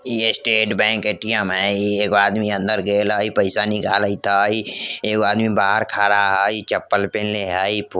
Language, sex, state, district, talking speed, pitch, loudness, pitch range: Maithili, male, Bihar, Vaishali, 170 wpm, 105 Hz, -15 LUFS, 100-110 Hz